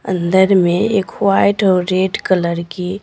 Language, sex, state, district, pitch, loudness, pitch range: Hindi, female, Bihar, Patna, 185 Hz, -15 LUFS, 180-195 Hz